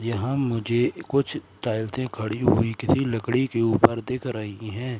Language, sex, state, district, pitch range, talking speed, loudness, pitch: Hindi, male, Madhya Pradesh, Katni, 110-130 Hz, 155 wpm, -24 LUFS, 115 Hz